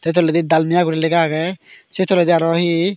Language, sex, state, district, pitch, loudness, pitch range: Chakma, male, Tripura, Dhalai, 170 Hz, -16 LUFS, 165-175 Hz